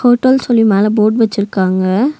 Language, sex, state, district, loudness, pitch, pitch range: Tamil, female, Tamil Nadu, Nilgiris, -12 LUFS, 220 Hz, 200-245 Hz